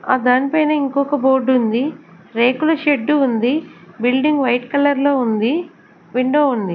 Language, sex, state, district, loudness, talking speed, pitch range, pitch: Telugu, female, Andhra Pradesh, Sri Satya Sai, -17 LUFS, 135 wpm, 245-290 Hz, 265 Hz